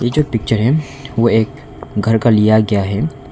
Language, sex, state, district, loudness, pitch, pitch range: Hindi, male, Arunachal Pradesh, Longding, -15 LUFS, 115 Hz, 105-135 Hz